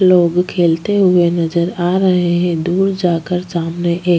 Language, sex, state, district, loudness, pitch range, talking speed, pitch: Hindi, female, Chhattisgarh, Bastar, -15 LUFS, 170-180 Hz, 160 wpm, 175 Hz